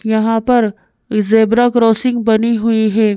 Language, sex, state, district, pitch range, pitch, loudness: Hindi, female, Madhya Pradesh, Bhopal, 220-235 Hz, 225 Hz, -13 LUFS